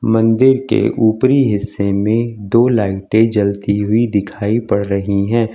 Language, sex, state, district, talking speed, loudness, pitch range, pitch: Hindi, male, Uttar Pradesh, Lucknow, 140 wpm, -15 LUFS, 100-115 Hz, 110 Hz